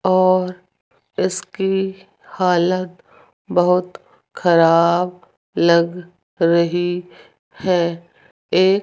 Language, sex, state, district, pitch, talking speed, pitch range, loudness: Hindi, female, Rajasthan, Jaipur, 180 Hz, 70 wpm, 170-185 Hz, -18 LUFS